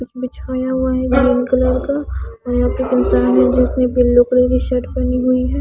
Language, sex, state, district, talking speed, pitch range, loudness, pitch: Hindi, female, Haryana, Charkhi Dadri, 225 wpm, 250-255 Hz, -16 LUFS, 255 Hz